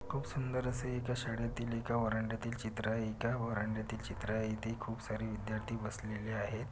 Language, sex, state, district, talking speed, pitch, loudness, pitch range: Marathi, male, Maharashtra, Pune, 170 wpm, 115 Hz, -39 LUFS, 110-120 Hz